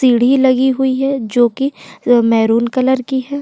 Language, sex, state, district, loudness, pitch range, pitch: Hindi, female, Uttar Pradesh, Jyotiba Phule Nagar, -14 LUFS, 240-265 Hz, 260 Hz